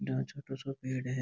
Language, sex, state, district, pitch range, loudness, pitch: Rajasthani, male, Rajasthan, Nagaur, 125-135 Hz, -38 LUFS, 130 Hz